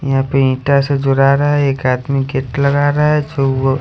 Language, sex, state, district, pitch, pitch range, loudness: Hindi, male, Odisha, Khordha, 135 Hz, 135-140 Hz, -14 LUFS